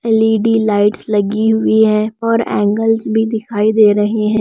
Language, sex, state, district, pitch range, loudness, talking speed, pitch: Hindi, female, Bihar, West Champaran, 210-225 Hz, -14 LUFS, 165 wpm, 220 Hz